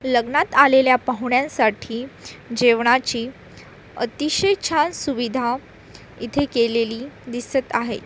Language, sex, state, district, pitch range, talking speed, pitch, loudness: Marathi, female, Maharashtra, Solapur, 235-275 Hz, 80 wpm, 250 Hz, -20 LUFS